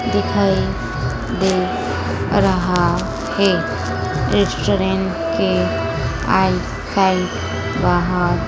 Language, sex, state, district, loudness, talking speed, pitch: Hindi, female, Madhya Pradesh, Dhar, -18 LUFS, 55 wpm, 175 Hz